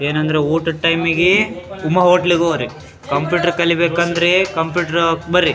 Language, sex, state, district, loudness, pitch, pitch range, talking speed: Kannada, male, Karnataka, Raichur, -16 LUFS, 170 Hz, 165-175 Hz, 120 wpm